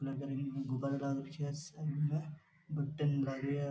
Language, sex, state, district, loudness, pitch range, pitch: Rajasthani, male, Rajasthan, Nagaur, -38 LUFS, 135-150 Hz, 145 Hz